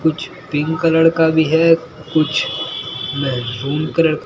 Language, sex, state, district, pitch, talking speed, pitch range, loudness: Hindi, male, Bihar, Katihar, 160 Hz, 140 wpm, 145-165 Hz, -17 LUFS